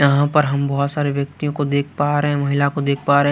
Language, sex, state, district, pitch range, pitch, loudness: Hindi, male, Chhattisgarh, Raipur, 140-145 Hz, 140 Hz, -19 LUFS